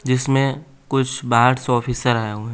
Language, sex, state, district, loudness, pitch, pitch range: Hindi, female, Bihar, West Champaran, -19 LUFS, 125 Hz, 120-135 Hz